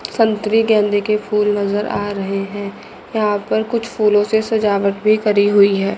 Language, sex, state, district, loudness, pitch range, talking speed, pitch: Hindi, female, Chandigarh, Chandigarh, -17 LUFS, 200-220 Hz, 180 wpm, 210 Hz